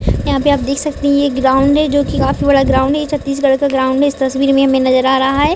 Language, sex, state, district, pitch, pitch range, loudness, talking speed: Hindi, female, Chhattisgarh, Raigarh, 275 Hz, 265-285 Hz, -13 LUFS, 300 wpm